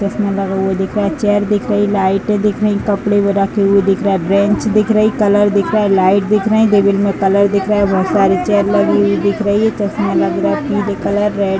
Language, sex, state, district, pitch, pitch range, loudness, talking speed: Hindi, female, Uttar Pradesh, Varanasi, 200 Hz, 195-205 Hz, -14 LUFS, 275 wpm